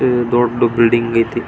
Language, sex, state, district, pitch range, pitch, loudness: Kannada, male, Karnataka, Belgaum, 115-120 Hz, 120 Hz, -15 LUFS